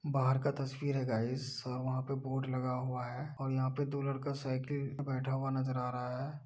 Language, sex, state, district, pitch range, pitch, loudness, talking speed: Hindi, male, Uttar Pradesh, Budaun, 130-140 Hz, 135 Hz, -36 LUFS, 260 wpm